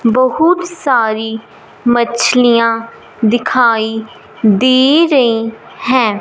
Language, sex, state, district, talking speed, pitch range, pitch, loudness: Hindi, male, Punjab, Fazilka, 70 wpm, 225-255 Hz, 235 Hz, -12 LUFS